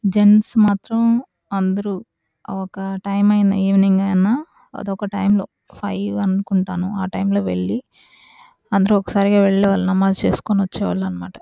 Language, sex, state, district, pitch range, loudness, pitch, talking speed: Telugu, female, Andhra Pradesh, Chittoor, 195-205 Hz, -18 LUFS, 200 Hz, 120 wpm